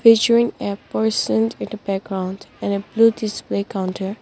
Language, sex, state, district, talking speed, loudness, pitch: English, female, Nagaland, Dimapur, 155 wpm, -20 LUFS, 195 Hz